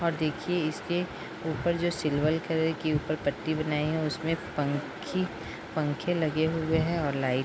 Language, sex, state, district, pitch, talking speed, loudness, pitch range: Hindi, female, Bihar, Madhepura, 160 Hz, 170 wpm, -29 LUFS, 150-165 Hz